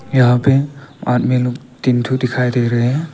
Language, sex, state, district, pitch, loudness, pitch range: Hindi, male, Arunachal Pradesh, Papum Pare, 125 Hz, -16 LUFS, 125-135 Hz